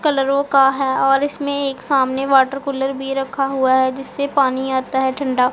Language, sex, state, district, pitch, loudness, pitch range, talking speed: Hindi, female, Punjab, Pathankot, 270 Hz, -18 LUFS, 265-275 Hz, 195 wpm